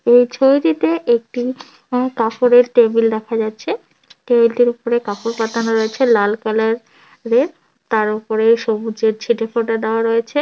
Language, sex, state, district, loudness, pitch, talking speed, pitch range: Bengali, female, West Bengal, Dakshin Dinajpur, -17 LUFS, 230 Hz, 145 wpm, 220-245 Hz